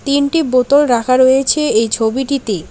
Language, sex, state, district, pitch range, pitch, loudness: Bengali, female, West Bengal, Alipurduar, 235-280 Hz, 260 Hz, -13 LUFS